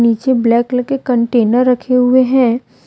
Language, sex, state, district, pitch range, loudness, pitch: Hindi, female, Jharkhand, Deoghar, 235-255 Hz, -13 LUFS, 250 Hz